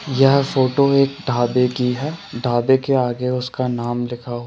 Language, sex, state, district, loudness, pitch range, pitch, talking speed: Hindi, male, Rajasthan, Jaipur, -19 LUFS, 120-135 Hz, 125 Hz, 175 wpm